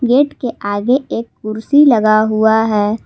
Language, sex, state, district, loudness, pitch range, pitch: Hindi, female, Jharkhand, Palamu, -13 LUFS, 215-255 Hz, 220 Hz